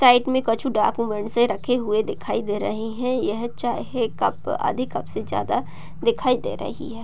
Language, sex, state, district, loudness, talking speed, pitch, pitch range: Hindi, female, Bihar, Gopalganj, -24 LUFS, 205 wpm, 240 Hz, 220-255 Hz